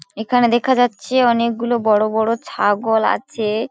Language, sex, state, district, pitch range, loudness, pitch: Bengali, female, West Bengal, Paschim Medinipur, 215-240 Hz, -17 LUFS, 230 Hz